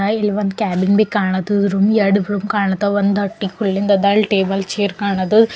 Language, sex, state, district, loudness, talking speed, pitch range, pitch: Kannada, female, Karnataka, Bidar, -17 LUFS, 160 wpm, 195-210 Hz, 200 Hz